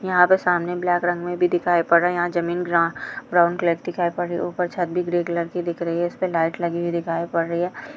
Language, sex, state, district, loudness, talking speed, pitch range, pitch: Hindi, female, Chhattisgarh, Bilaspur, -22 LUFS, 295 wpm, 170-180 Hz, 175 Hz